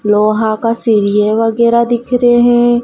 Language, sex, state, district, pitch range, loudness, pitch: Hindi, female, Madhya Pradesh, Dhar, 215-240 Hz, -11 LUFS, 230 Hz